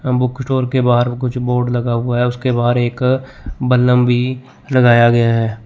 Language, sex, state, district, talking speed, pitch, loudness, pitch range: Hindi, male, Chandigarh, Chandigarh, 180 wpm, 125 Hz, -15 LUFS, 120-125 Hz